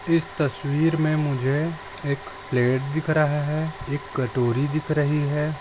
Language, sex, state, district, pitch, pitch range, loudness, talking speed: Hindi, male, Goa, North and South Goa, 150 Hz, 140-155 Hz, -24 LUFS, 150 wpm